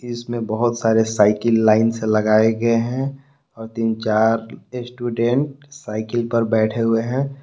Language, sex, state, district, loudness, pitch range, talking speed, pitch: Hindi, male, Jharkhand, Palamu, -19 LUFS, 110-120 Hz, 145 wpm, 115 Hz